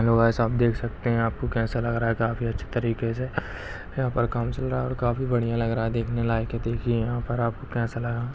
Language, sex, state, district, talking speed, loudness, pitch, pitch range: Hindi, male, Chhattisgarh, Rajnandgaon, 260 wpm, -26 LUFS, 115 Hz, 115-120 Hz